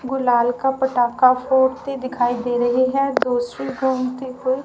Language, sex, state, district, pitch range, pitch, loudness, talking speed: Hindi, female, Haryana, Rohtak, 245-265 Hz, 255 Hz, -19 LUFS, 130 wpm